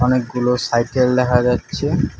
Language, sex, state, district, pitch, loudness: Bengali, male, West Bengal, Alipurduar, 125 Hz, -18 LUFS